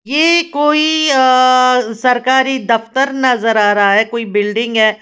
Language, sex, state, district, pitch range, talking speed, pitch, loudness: Hindi, female, Uttar Pradesh, Lalitpur, 225-270 Hz, 145 wpm, 250 Hz, -12 LUFS